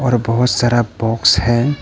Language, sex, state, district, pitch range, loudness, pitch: Hindi, male, Arunachal Pradesh, Papum Pare, 115-125 Hz, -15 LUFS, 120 Hz